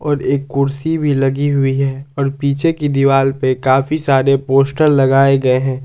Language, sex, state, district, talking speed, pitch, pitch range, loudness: Hindi, male, Jharkhand, Palamu, 185 wpm, 135 Hz, 135-140 Hz, -15 LUFS